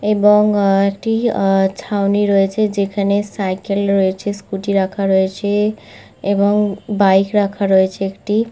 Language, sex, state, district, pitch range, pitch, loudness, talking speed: Bengali, female, West Bengal, Malda, 195-205 Hz, 200 Hz, -16 LUFS, 125 wpm